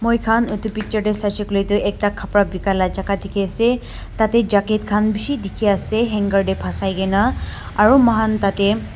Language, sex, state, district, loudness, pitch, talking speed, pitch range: Nagamese, female, Nagaland, Dimapur, -18 LUFS, 210 Hz, 200 wpm, 200-220 Hz